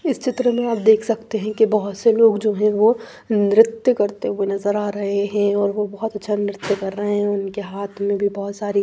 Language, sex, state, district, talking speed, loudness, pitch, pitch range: Hindi, female, Punjab, Pathankot, 240 wpm, -19 LUFS, 205 Hz, 200-220 Hz